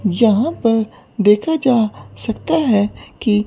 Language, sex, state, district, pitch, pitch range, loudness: Hindi, female, Chandigarh, Chandigarh, 225 Hz, 210-235 Hz, -17 LUFS